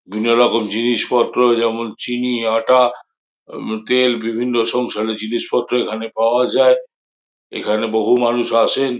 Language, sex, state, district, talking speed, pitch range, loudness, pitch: Bengali, male, West Bengal, Jhargram, 120 wpm, 115-125 Hz, -17 LUFS, 120 Hz